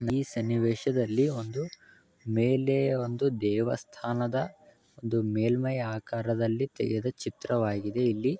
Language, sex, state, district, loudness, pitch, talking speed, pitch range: Kannada, male, Karnataka, Bellary, -29 LUFS, 120 Hz, 65 wpm, 115-135 Hz